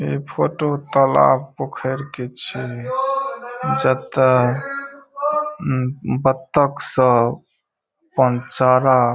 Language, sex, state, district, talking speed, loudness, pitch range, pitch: Maithili, male, Bihar, Saharsa, 85 wpm, -19 LUFS, 125-170 Hz, 135 Hz